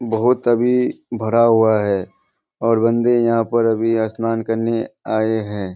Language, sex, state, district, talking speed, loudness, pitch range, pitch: Hindi, male, Bihar, Kishanganj, 145 wpm, -18 LUFS, 110-115 Hz, 115 Hz